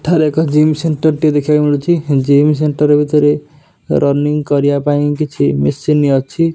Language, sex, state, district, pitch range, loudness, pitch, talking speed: Odia, male, Odisha, Nuapada, 145-155 Hz, -13 LUFS, 150 Hz, 145 wpm